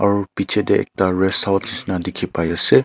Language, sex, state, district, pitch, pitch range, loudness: Nagamese, male, Nagaland, Kohima, 95 Hz, 90-100 Hz, -19 LUFS